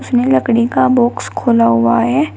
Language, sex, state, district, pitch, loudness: Hindi, female, Uttar Pradesh, Shamli, 235 Hz, -13 LUFS